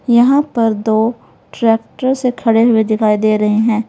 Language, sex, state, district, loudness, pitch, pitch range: Hindi, female, Uttar Pradesh, Lalitpur, -14 LUFS, 225 Hz, 215-240 Hz